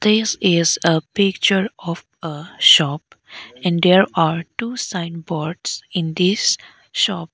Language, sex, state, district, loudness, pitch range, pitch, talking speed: English, female, Arunachal Pradesh, Lower Dibang Valley, -18 LUFS, 165-195 Hz, 175 Hz, 125 wpm